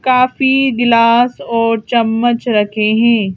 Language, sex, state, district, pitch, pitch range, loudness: Hindi, female, Madhya Pradesh, Bhopal, 235 Hz, 225-245 Hz, -13 LUFS